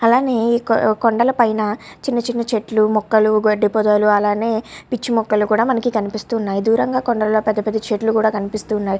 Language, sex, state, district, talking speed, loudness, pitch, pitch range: Telugu, female, Andhra Pradesh, Guntur, 165 wpm, -17 LUFS, 220 Hz, 215-235 Hz